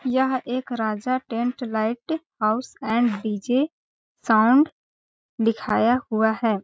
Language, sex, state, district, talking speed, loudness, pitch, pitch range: Hindi, female, Chhattisgarh, Balrampur, 120 wpm, -23 LUFS, 240 Hz, 220-255 Hz